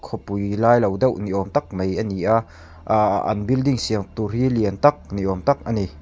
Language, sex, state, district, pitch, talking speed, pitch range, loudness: Mizo, male, Mizoram, Aizawl, 105 Hz, 240 wpm, 95-120 Hz, -21 LUFS